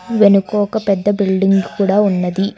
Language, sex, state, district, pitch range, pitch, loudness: Telugu, female, Telangana, Hyderabad, 195-205 Hz, 200 Hz, -15 LUFS